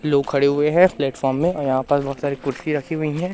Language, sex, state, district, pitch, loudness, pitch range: Hindi, male, Madhya Pradesh, Katni, 145 Hz, -20 LUFS, 140-155 Hz